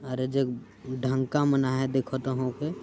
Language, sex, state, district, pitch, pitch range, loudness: Sadri, male, Chhattisgarh, Jashpur, 130 Hz, 130-135 Hz, -28 LUFS